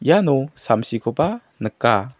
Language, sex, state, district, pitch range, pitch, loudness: Garo, male, Meghalaya, South Garo Hills, 115-145 Hz, 120 Hz, -20 LUFS